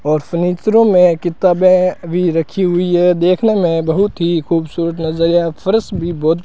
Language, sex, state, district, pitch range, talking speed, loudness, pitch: Hindi, male, Rajasthan, Bikaner, 165-185 Hz, 175 wpm, -14 LUFS, 175 Hz